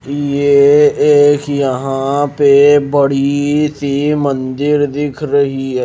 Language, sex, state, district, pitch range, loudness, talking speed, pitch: Hindi, male, Himachal Pradesh, Shimla, 140-145 Hz, -12 LUFS, 105 wpm, 145 Hz